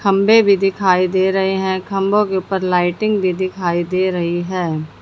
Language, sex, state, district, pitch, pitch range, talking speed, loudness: Hindi, female, Haryana, Jhajjar, 190 Hz, 180-195 Hz, 180 wpm, -16 LUFS